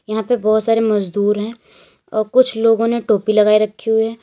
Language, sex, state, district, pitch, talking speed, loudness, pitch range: Hindi, female, Uttar Pradesh, Lalitpur, 220 Hz, 215 wpm, -16 LUFS, 215-230 Hz